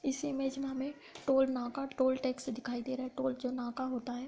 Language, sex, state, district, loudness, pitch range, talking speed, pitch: Hindi, female, Uttar Pradesh, Budaun, -35 LUFS, 250-270 Hz, 240 wpm, 260 Hz